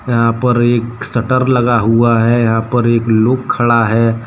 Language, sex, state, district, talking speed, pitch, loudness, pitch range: Hindi, male, Jharkhand, Deoghar, 180 wpm, 120 Hz, -13 LUFS, 115-120 Hz